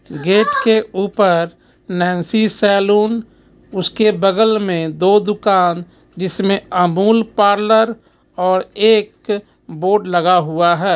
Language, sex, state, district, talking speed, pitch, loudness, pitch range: Hindi, male, Jharkhand, Ranchi, 105 wpm, 200 Hz, -15 LUFS, 180-215 Hz